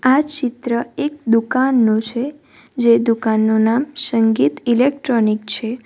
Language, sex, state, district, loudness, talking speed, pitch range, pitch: Gujarati, female, Gujarat, Valsad, -17 LUFS, 115 wpm, 225-265 Hz, 240 Hz